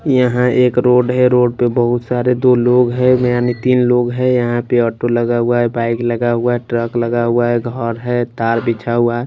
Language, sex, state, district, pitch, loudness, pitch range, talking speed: Hindi, male, Bihar, Katihar, 120 Hz, -15 LUFS, 120-125 Hz, 240 wpm